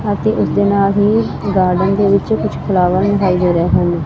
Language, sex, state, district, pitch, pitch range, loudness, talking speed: Punjabi, female, Punjab, Fazilka, 195 Hz, 180-200 Hz, -14 LUFS, 190 wpm